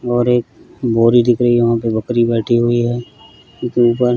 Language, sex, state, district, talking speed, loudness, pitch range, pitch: Hindi, male, Bihar, Gaya, 230 wpm, -15 LUFS, 115-120 Hz, 120 Hz